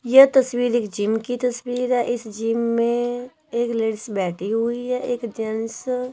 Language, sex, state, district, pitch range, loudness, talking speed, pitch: Hindi, female, Himachal Pradesh, Shimla, 225-250 Hz, -22 LUFS, 175 wpm, 240 Hz